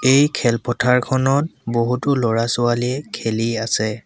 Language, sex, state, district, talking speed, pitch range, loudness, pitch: Assamese, male, Assam, Sonitpur, 105 wpm, 115-135 Hz, -19 LUFS, 120 Hz